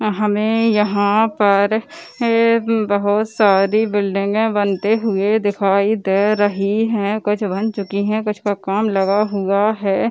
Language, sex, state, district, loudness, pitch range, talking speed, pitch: Hindi, female, Bihar, Gaya, -17 LUFS, 200-220 Hz, 135 wpm, 210 Hz